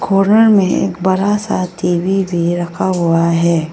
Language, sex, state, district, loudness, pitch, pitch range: Hindi, female, Arunachal Pradesh, Lower Dibang Valley, -14 LUFS, 185 Hz, 170-195 Hz